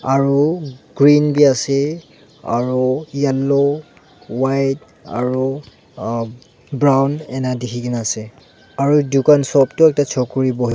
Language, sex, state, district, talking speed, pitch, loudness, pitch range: Nagamese, male, Nagaland, Dimapur, 115 wpm, 135 Hz, -17 LUFS, 125-145 Hz